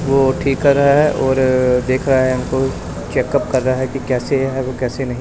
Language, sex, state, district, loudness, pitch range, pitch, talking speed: Hindi, male, Punjab, Pathankot, -16 LUFS, 130-135 Hz, 130 Hz, 220 wpm